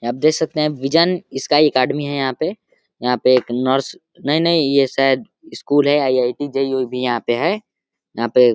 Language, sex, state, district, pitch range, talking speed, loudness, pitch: Hindi, male, Uttar Pradesh, Deoria, 125-150 Hz, 225 wpm, -18 LUFS, 135 Hz